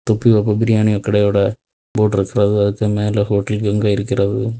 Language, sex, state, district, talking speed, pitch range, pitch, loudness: Tamil, male, Tamil Nadu, Kanyakumari, 145 wpm, 100-110 Hz, 105 Hz, -16 LUFS